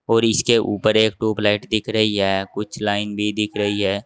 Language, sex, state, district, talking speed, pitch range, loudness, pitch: Hindi, male, Uttar Pradesh, Saharanpur, 205 wpm, 105-110 Hz, -19 LUFS, 105 Hz